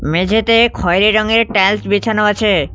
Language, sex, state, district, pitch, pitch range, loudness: Bengali, male, West Bengal, Cooch Behar, 210 Hz, 195-220 Hz, -13 LUFS